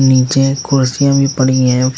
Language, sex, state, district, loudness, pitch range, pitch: Hindi, male, Uttar Pradesh, Lucknow, -13 LUFS, 130-135 Hz, 135 Hz